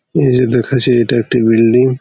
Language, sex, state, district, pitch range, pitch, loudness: Bengali, male, West Bengal, Malda, 120-130 Hz, 125 Hz, -12 LUFS